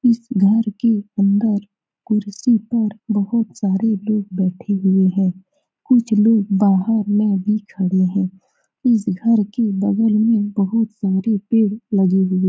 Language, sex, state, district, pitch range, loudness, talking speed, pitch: Hindi, female, Bihar, Saran, 195-225 Hz, -18 LUFS, 150 wpm, 210 Hz